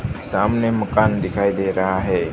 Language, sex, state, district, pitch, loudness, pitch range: Hindi, male, Gujarat, Gandhinagar, 100 Hz, -19 LUFS, 95-105 Hz